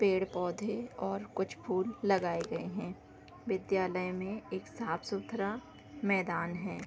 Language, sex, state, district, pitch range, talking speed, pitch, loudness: Hindi, female, Bihar, Darbhanga, 185-210 Hz, 130 wpm, 195 Hz, -35 LUFS